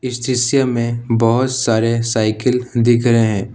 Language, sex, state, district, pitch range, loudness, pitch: Hindi, male, Jharkhand, Ranchi, 115-125 Hz, -16 LUFS, 120 Hz